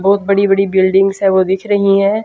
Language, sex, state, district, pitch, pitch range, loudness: Hindi, female, Haryana, Jhajjar, 195 Hz, 190-200 Hz, -12 LUFS